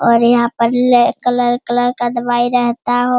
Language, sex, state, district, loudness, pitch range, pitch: Hindi, female, Bihar, Jamui, -14 LUFS, 240-245 Hz, 240 Hz